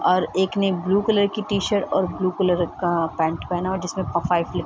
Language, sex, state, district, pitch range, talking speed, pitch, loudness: Hindi, female, Bihar, Sitamarhi, 175-200 Hz, 245 wpm, 185 Hz, -22 LUFS